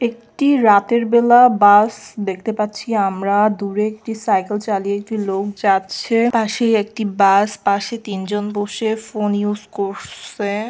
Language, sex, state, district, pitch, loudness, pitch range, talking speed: Bengali, female, West Bengal, Jhargram, 210 Hz, -17 LUFS, 200-225 Hz, 125 wpm